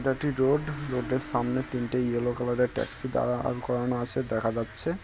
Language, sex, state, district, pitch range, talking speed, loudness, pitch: Bengali, male, West Bengal, Kolkata, 120-135 Hz, 200 wpm, -28 LUFS, 125 Hz